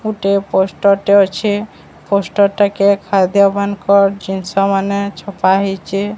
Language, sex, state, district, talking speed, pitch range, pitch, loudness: Odia, male, Odisha, Sambalpur, 125 wpm, 195-200 Hz, 200 Hz, -14 LUFS